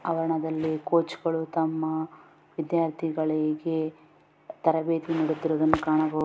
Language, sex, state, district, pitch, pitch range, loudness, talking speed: Kannada, female, Karnataka, Bellary, 160 Hz, 155-165 Hz, -27 LUFS, 75 wpm